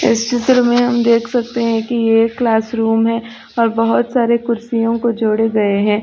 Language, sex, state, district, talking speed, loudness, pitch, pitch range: Hindi, female, Uttar Pradesh, Hamirpur, 210 wpm, -15 LUFS, 230 Hz, 225-235 Hz